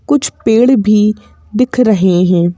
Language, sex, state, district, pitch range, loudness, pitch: Hindi, female, Madhya Pradesh, Bhopal, 185-245 Hz, -11 LUFS, 215 Hz